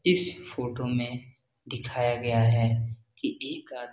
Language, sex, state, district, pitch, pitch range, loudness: Hindi, male, Bihar, Jahanabad, 125 Hz, 120-135 Hz, -29 LUFS